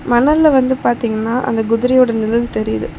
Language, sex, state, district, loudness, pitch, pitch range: Tamil, female, Tamil Nadu, Chennai, -15 LUFS, 240 Hz, 230-255 Hz